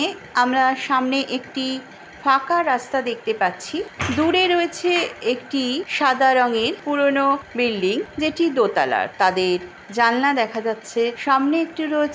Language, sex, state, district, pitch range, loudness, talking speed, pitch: Bengali, female, West Bengal, Jhargram, 235-300 Hz, -20 LUFS, 120 wpm, 265 Hz